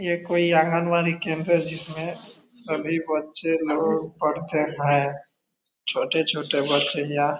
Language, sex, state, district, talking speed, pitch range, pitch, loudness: Hindi, male, Bihar, East Champaran, 130 wpm, 150-170 Hz, 160 Hz, -24 LUFS